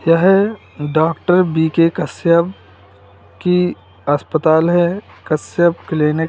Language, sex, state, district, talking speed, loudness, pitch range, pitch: Hindi, male, Uttar Pradesh, Lalitpur, 95 wpm, -16 LUFS, 145-175 Hz, 160 Hz